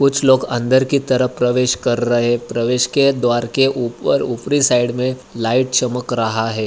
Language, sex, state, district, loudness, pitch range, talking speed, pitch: Hindi, male, Maharashtra, Aurangabad, -17 LUFS, 120-130 Hz, 180 wpm, 125 Hz